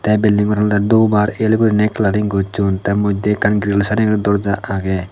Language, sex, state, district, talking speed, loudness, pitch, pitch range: Chakma, male, Tripura, Dhalai, 210 wpm, -16 LUFS, 105 Hz, 100-105 Hz